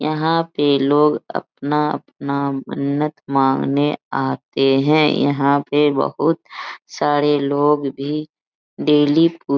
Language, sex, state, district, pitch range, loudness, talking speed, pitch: Hindi, female, Bihar, Bhagalpur, 140-150 Hz, -18 LUFS, 105 wpm, 145 Hz